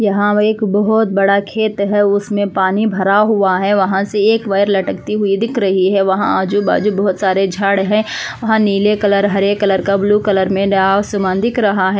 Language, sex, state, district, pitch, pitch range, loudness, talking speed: Hindi, female, Andhra Pradesh, Anantapur, 200 Hz, 195-210 Hz, -14 LUFS, 190 wpm